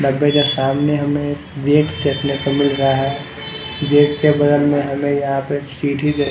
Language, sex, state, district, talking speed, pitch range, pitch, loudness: Hindi, male, Chandigarh, Chandigarh, 180 wpm, 140-145 Hz, 145 Hz, -17 LUFS